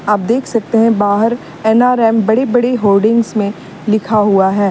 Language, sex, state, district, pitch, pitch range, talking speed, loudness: Hindi, female, Uttar Pradesh, Lalitpur, 220 Hz, 205-230 Hz, 165 wpm, -13 LUFS